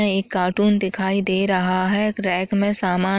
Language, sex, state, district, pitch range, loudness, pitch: Chhattisgarhi, female, Chhattisgarh, Jashpur, 185-205 Hz, -19 LUFS, 195 Hz